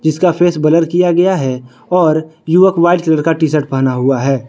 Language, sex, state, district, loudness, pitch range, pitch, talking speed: Hindi, male, Jharkhand, Palamu, -13 LUFS, 135-175 Hz, 160 Hz, 215 wpm